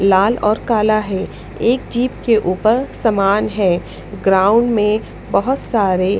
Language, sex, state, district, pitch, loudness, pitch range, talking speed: Hindi, female, Punjab, Pathankot, 215 Hz, -16 LUFS, 195-230 Hz, 135 wpm